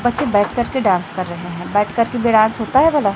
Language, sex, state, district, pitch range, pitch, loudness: Hindi, female, Chhattisgarh, Raipur, 195-245 Hz, 220 Hz, -17 LUFS